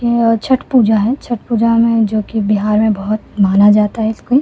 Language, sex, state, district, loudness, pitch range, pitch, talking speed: Hindi, female, Delhi, New Delhi, -13 LUFS, 210-235 Hz, 220 Hz, 215 wpm